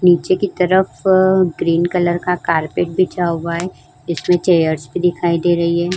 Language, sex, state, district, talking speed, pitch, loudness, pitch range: Hindi, female, Uttar Pradesh, Jyotiba Phule Nagar, 170 wpm, 175 Hz, -16 LUFS, 170-180 Hz